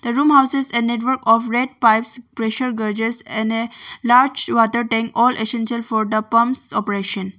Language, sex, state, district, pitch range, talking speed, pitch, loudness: English, female, Arunachal Pradesh, Longding, 225-245 Hz, 180 wpm, 235 Hz, -18 LUFS